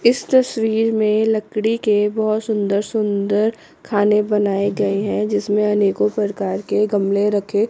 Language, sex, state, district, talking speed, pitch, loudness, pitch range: Hindi, female, Chandigarh, Chandigarh, 140 wpm, 210 Hz, -18 LUFS, 205-220 Hz